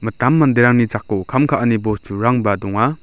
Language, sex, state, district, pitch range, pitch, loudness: Garo, male, Meghalaya, South Garo Hills, 105-130 Hz, 115 Hz, -16 LUFS